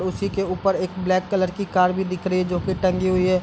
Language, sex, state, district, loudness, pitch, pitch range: Hindi, male, Bihar, Darbhanga, -22 LUFS, 185 Hz, 185-190 Hz